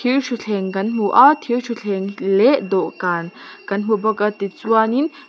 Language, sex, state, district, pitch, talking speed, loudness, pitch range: Mizo, female, Mizoram, Aizawl, 215 Hz, 180 wpm, -18 LUFS, 195-240 Hz